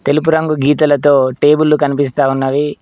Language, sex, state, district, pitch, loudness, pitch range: Telugu, male, Telangana, Mahabubabad, 145 Hz, -13 LUFS, 140-150 Hz